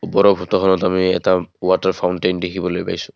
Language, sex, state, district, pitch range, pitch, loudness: Assamese, male, Assam, Kamrup Metropolitan, 90-95 Hz, 90 Hz, -18 LUFS